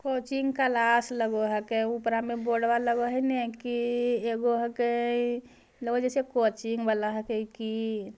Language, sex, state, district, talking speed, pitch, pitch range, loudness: Magahi, female, Bihar, Jamui, 160 wpm, 235 Hz, 225-240 Hz, -28 LUFS